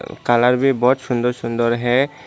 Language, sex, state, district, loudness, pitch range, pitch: Hindi, male, Tripura, Dhalai, -18 LUFS, 120-130 Hz, 125 Hz